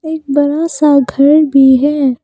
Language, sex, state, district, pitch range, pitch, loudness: Hindi, female, Arunachal Pradesh, Papum Pare, 275-305 Hz, 290 Hz, -10 LUFS